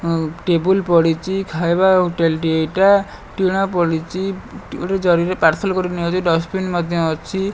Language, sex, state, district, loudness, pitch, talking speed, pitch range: Odia, male, Odisha, Malkangiri, -18 LUFS, 175 Hz, 145 wpm, 165-190 Hz